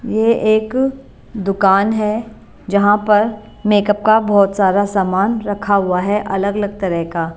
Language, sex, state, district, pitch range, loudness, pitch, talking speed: Hindi, female, Bihar, Katihar, 195-215 Hz, -16 LUFS, 205 Hz, 145 wpm